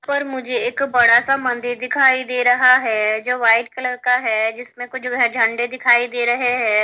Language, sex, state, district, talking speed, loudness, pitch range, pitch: Hindi, female, Haryana, Charkhi Dadri, 195 wpm, -17 LUFS, 240-255 Hz, 245 Hz